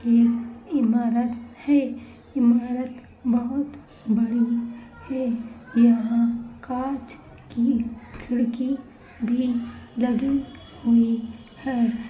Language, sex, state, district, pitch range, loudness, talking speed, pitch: Hindi, female, Uttar Pradesh, Budaun, 235-255 Hz, -24 LUFS, 75 wpm, 240 Hz